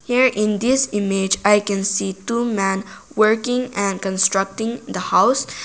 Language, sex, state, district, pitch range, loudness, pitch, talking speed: English, female, Nagaland, Kohima, 195-235 Hz, -19 LUFS, 205 Hz, 160 wpm